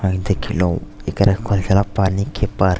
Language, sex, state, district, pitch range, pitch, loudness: Bhojpuri, male, Uttar Pradesh, Deoria, 95-100 Hz, 100 Hz, -19 LUFS